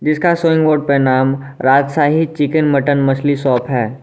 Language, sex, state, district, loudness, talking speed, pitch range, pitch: Hindi, male, Jharkhand, Garhwa, -14 LUFS, 165 wpm, 135-155 Hz, 140 Hz